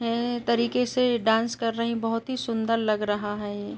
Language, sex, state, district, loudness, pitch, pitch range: Hindi, female, Uttar Pradesh, Etah, -26 LUFS, 230 Hz, 220-235 Hz